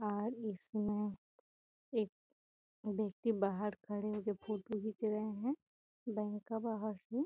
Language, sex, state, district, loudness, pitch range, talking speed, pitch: Hindi, female, Bihar, Gopalganj, -40 LUFS, 210-220 Hz, 125 wpm, 210 Hz